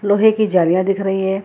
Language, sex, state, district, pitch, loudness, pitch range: Hindi, female, Bihar, Gaya, 195 Hz, -16 LUFS, 190-205 Hz